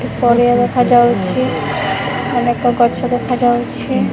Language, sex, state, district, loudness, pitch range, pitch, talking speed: Odia, female, Odisha, Khordha, -14 LUFS, 240-245 Hz, 245 Hz, 75 wpm